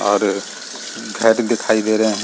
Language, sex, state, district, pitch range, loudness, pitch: Hindi, male, Chhattisgarh, Rajnandgaon, 110-115 Hz, -18 LUFS, 110 Hz